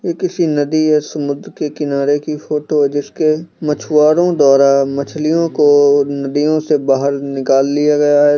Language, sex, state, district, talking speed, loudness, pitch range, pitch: Hindi, male, Bihar, East Champaran, 155 wpm, -14 LUFS, 140-155 Hz, 145 Hz